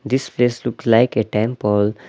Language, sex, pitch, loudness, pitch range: English, male, 120 Hz, -18 LUFS, 105-125 Hz